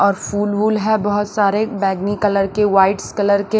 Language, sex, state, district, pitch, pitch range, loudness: Hindi, female, Maharashtra, Washim, 205 Hz, 200-210 Hz, -17 LUFS